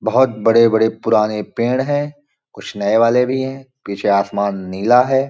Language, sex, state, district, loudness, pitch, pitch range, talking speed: Hindi, male, Chhattisgarh, Balrampur, -16 LUFS, 115 Hz, 105-130 Hz, 170 wpm